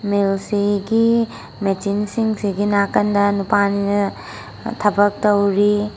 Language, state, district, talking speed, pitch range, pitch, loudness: Manipuri, Manipur, Imphal West, 90 wpm, 200-210 Hz, 205 Hz, -18 LUFS